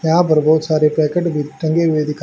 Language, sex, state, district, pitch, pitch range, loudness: Hindi, male, Haryana, Charkhi Dadri, 155 Hz, 150-165 Hz, -16 LUFS